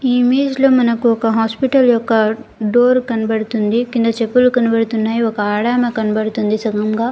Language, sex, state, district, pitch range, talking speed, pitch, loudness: Telugu, female, Andhra Pradesh, Guntur, 220-245 Hz, 125 wpm, 230 Hz, -15 LUFS